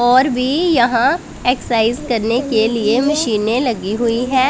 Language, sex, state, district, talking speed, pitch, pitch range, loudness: Hindi, female, Punjab, Pathankot, 145 wpm, 245 Hz, 230-260 Hz, -16 LUFS